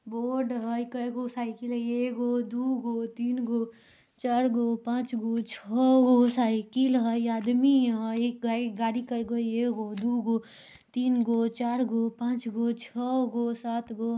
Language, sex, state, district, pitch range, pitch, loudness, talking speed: Bajjika, female, Bihar, Vaishali, 230-245 Hz, 235 Hz, -28 LUFS, 155 wpm